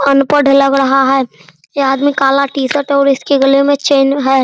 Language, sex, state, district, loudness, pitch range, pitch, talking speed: Hindi, male, Bihar, Araria, -11 LUFS, 270-280 Hz, 275 Hz, 190 wpm